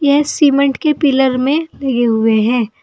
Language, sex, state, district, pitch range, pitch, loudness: Hindi, female, Uttar Pradesh, Saharanpur, 240-290 Hz, 275 Hz, -14 LUFS